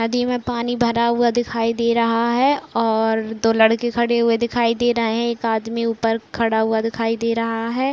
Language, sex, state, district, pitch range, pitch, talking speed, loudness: Hindi, female, Uttar Pradesh, Budaun, 225-235 Hz, 230 Hz, 205 wpm, -19 LUFS